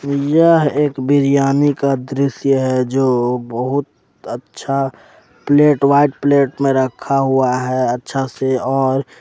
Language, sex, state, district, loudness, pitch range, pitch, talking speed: Hindi, male, Jharkhand, Ranchi, -16 LUFS, 130-140 Hz, 135 Hz, 125 wpm